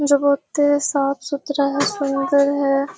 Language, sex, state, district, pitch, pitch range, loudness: Hindi, female, Bihar, Kishanganj, 280 Hz, 280-285 Hz, -19 LUFS